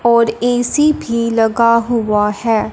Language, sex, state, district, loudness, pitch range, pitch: Hindi, male, Punjab, Fazilka, -14 LUFS, 225-245 Hz, 230 Hz